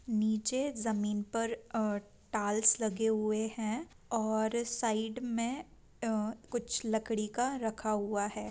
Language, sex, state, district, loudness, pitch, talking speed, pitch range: Hindi, female, Bihar, Sitamarhi, -34 LUFS, 220 Hz, 125 wpm, 215-230 Hz